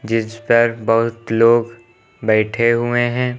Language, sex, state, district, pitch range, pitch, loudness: Hindi, male, Uttar Pradesh, Lucknow, 115-120 Hz, 115 Hz, -17 LUFS